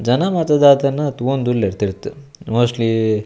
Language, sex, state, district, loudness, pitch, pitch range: Tulu, male, Karnataka, Dakshina Kannada, -17 LUFS, 125 Hz, 115-140 Hz